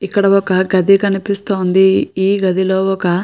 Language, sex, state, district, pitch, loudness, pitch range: Telugu, female, Andhra Pradesh, Chittoor, 190 Hz, -14 LUFS, 190-195 Hz